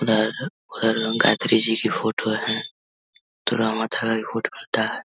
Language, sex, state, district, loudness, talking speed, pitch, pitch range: Hindi, male, Bihar, Vaishali, -21 LUFS, 70 wpm, 115 Hz, 110-115 Hz